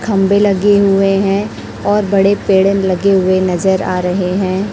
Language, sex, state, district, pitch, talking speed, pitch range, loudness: Hindi, female, Chhattisgarh, Raipur, 195 Hz, 165 wpm, 185-200 Hz, -13 LUFS